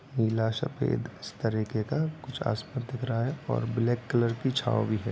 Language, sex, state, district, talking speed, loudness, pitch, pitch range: Hindi, male, Bihar, Gopalganj, 200 wpm, -30 LUFS, 115 Hz, 110-130 Hz